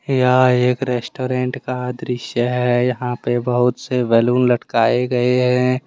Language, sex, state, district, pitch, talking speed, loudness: Hindi, male, Jharkhand, Deoghar, 125 Hz, 145 wpm, -18 LUFS